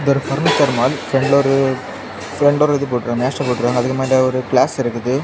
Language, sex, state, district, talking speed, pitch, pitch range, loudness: Tamil, male, Tamil Nadu, Kanyakumari, 115 wpm, 130 Hz, 125-140 Hz, -16 LUFS